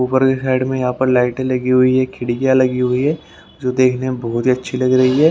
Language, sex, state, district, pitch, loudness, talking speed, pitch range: Hindi, male, Haryana, Rohtak, 130 Hz, -16 LUFS, 240 wpm, 125-130 Hz